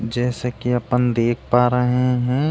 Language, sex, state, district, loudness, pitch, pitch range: Hindi, male, Bihar, Jamui, -19 LUFS, 125 Hz, 120-125 Hz